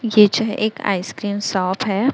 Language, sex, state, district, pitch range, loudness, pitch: Hindi, male, Chhattisgarh, Raipur, 195-220 Hz, -19 LUFS, 205 Hz